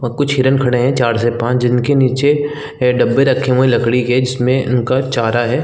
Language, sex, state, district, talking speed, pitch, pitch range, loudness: Hindi, male, Chhattisgarh, Rajnandgaon, 235 wpm, 125 Hz, 120-135 Hz, -14 LUFS